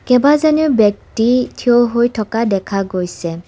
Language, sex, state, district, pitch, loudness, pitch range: Assamese, female, Assam, Kamrup Metropolitan, 230 Hz, -15 LUFS, 195-250 Hz